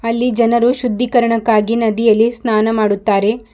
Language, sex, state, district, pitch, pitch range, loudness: Kannada, female, Karnataka, Bidar, 230 Hz, 220-235 Hz, -14 LUFS